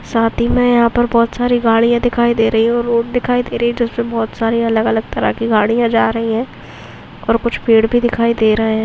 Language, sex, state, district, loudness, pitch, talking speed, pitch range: Hindi, female, Goa, North and South Goa, -15 LUFS, 235 Hz, 230 wpm, 225-240 Hz